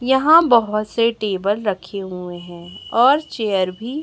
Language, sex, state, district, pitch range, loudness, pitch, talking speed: Hindi, male, Chhattisgarh, Raipur, 190-245 Hz, -18 LUFS, 215 Hz, 150 wpm